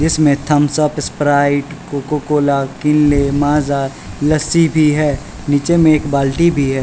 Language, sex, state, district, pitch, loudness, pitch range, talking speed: Hindi, male, Bihar, West Champaran, 145 Hz, -15 LUFS, 140-150 Hz, 140 wpm